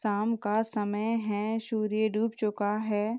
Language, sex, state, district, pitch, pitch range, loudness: Hindi, female, Jharkhand, Sahebganj, 215 Hz, 210-225 Hz, -30 LUFS